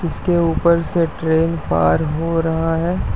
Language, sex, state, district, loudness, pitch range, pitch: Hindi, male, Uttar Pradesh, Etah, -18 LUFS, 160-170 Hz, 165 Hz